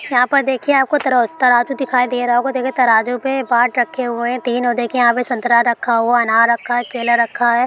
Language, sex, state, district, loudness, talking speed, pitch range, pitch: Hindi, female, Bihar, Jamui, -15 LUFS, 250 wpm, 235-255 Hz, 245 Hz